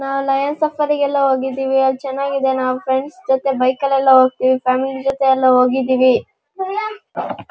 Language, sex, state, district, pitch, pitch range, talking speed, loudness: Kannada, male, Karnataka, Shimoga, 265 Hz, 260-275 Hz, 145 wpm, -16 LUFS